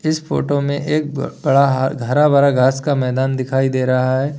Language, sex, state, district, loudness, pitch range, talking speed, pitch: Hindi, male, Uttar Pradesh, Lalitpur, -17 LUFS, 130-145 Hz, 205 wpm, 135 Hz